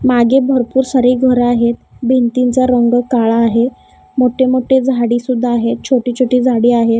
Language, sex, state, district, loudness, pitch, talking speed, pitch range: Marathi, female, Maharashtra, Gondia, -13 LUFS, 250 Hz, 145 wpm, 240-255 Hz